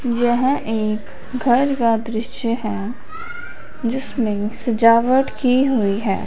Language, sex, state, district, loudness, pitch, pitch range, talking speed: Hindi, female, Punjab, Fazilka, -19 LUFS, 235 Hz, 220-260 Hz, 105 wpm